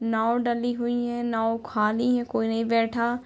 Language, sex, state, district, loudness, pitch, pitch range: Hindi, female, Bihar, Darbhanga, -25 LUFS, 235 Hz, 225-240 Hz